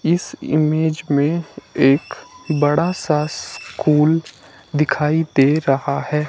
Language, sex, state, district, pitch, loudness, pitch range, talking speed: Hindi, male, Himachal Pradesh, Shimla, 155 Hz, -18 LUFS, 145-160 Hz, 105 wpm